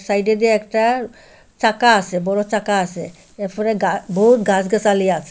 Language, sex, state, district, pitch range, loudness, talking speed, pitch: Bengali, female, Assam, Hailakandi, 195-220 Hz, -17 LUFS, 145 wpm, 205 Hz